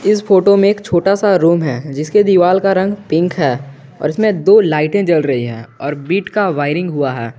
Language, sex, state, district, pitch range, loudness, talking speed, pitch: Hindi, male, Jharkhand, Garhwa, 145-200 Hz, -14 LUFS, 220 wpm, 175 Hz